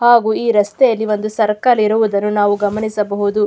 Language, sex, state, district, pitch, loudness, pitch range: Kannada, female, Karnataka, Mysore, 215 Hz, -15 LUFS, 205-225 Hz